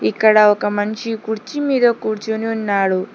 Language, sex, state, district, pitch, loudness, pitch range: Telugu, female, Telangana, Hyderabad, 215 Hz, -17 LUFS, 205-225 Hz